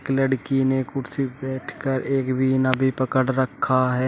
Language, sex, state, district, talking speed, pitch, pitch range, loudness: Hindi, male, Uttar Pradesh, Shamli, 175 wpm, 130 Hz, 130-135 Hz, -23 LUFS